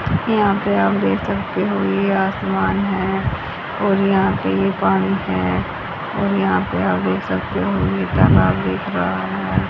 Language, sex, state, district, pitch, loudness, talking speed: Hindi, female, Haryana, Charkhi Dadri, 95 Hz, -19 LUFS, 165 wpm